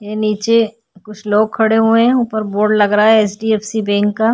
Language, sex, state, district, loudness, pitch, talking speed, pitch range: Hindi, female, Uttar Pradesh, Hamirpur, -14 LUFS, 215 Hz, 210 wpm, 210-225 Hz